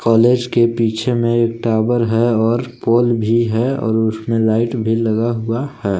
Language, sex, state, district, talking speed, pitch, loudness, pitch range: Hindi, male, Jharkhand, Palamu, 180 wpm, 115 Hz, -16 LUFS, 110-120 Hz